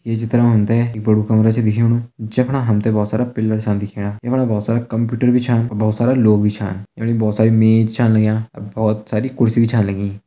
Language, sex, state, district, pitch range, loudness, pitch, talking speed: Hindi, male, Uttarakhand, Tehri Garhwal, 105-115 Hz, -17 LUFS, 110 Hz, 240 wpm